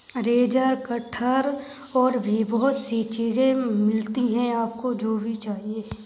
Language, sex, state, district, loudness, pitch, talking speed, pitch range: Hindi, male, Uttarakhand, Tehri Garhwal, -24 LUFS, 240 Hz, 130 wpm, 225-255 Hz